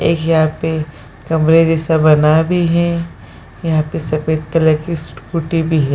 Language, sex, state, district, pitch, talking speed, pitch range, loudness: Hindi, female, Bihar, Jahanabad, 160 Hz, 170 wpm, 155-165 Hz, -15 LUFS